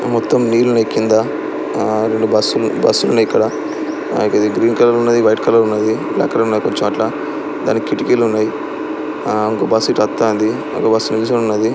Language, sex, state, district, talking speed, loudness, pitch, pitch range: Telugu, male, Andhra Pradesh, Srikakulam, 145 wpm, -15 LUFS, 110 Hz, 110-115 Hz